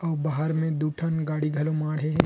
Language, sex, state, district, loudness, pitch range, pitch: Chhattisgarhi, male, Chhattisgarh, Rajnandgaon, -27 LUFS, 155-160 Hz, 155 Hz